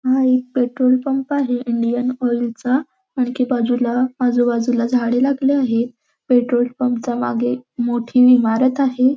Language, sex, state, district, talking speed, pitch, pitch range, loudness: Marathi, female, Maharashtra, Nagpur, 140 wpm, 250 Hz, 240-255 Hz, -18 LUFS